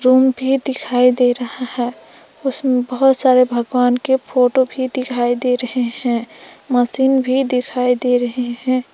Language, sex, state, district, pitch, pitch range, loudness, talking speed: Hindi, female, Jharkhand, Palamu, 250 Hz, 245-260 Hz, -16 LUFS, 155 wpm